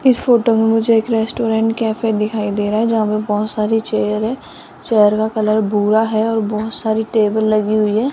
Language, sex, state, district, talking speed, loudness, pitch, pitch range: Hindi, female, Rajasthan, Jaipur, 215 wpm, -16 LUFS, 220 Hz, 215-225 Hz